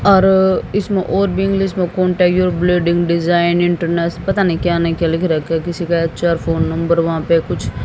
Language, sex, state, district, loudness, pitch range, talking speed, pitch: Hindi, female, Haryana, Jhajjar, -16 LUFS, 165-185 Hz, 190 wpm, 175 Hz